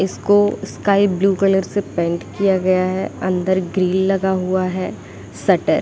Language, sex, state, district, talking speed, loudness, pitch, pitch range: Hindi, female, Bihar, Saran, 165 wpm, -18 LUFS, 185 Hz, 185-195 Hz